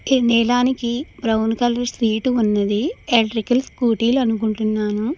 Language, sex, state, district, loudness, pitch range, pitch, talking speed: Telugu, male, Telangana, Hyderabad, -19 LUFS, 220-250 Hz, 235 Hz, 105 wpm